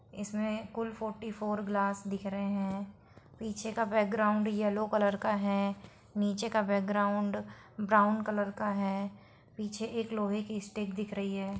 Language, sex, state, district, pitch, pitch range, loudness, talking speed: Hindi, female, Bihar, Saran, 205 Hz, 200-215 Hz, -33 LUFS, 155 wpm